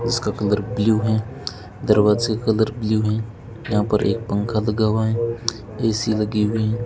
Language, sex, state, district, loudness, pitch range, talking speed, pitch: Hindi, male, Rajasthan, Bikaner, -21 LUFS, 105-115 Hz, 175 wpm, 110 Hz